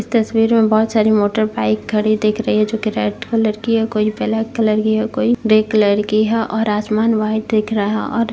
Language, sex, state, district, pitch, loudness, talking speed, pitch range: Hindi, female, Uttar Pradesh, Jyotiba Phule Nagar, 215 Hz, -16 LUFS, 245 wpm, 215-225 Hz